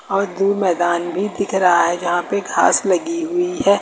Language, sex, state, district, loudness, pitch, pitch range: Hindi, female, Uttar Pradesh, Lucknow, -18 LUFS, 195 Hz, 175-200 Hz